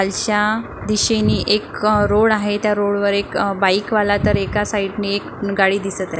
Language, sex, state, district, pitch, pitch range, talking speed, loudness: Marathi, female, Maharashtra, Nagpur, 205 Hz, 200-210 Hz, 165 wpm, -18 LUFS